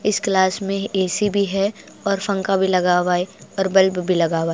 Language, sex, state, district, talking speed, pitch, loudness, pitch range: Hindi, female, Bihar, Patna, 225 wpm, 190 Hz, -20 LUFS, 180-200 Hz